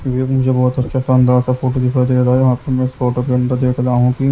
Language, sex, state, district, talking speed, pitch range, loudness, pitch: Hindi, male, Haryana, Jhajjar, 305 wpm, 125-130 Hz, -15 LUFS, 125 Hz